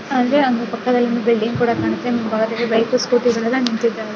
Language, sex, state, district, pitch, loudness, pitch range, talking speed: Kannada, female, Karnataka, Gulbarga, 235 Hz, -18 LUFS, 230-245 Hz, 185 wpm